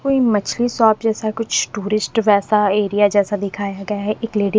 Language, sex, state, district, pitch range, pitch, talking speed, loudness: Hindi, female, Haryana, Rohtak, 205-225 Hz, 210 Hz, 195 wpm, -18 LUFS